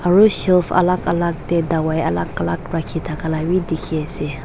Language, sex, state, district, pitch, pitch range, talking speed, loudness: Nagamese, female, Nagaland, Dimapur, 165 Hz, 155-180 Hz, 150 wpm, -19 LUFS